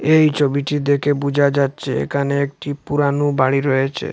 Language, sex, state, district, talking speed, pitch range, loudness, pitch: Bengali, male, Assam, Hailakandi, 145 wpm, 140-145 Hz, -18 LUFS, 140 Hz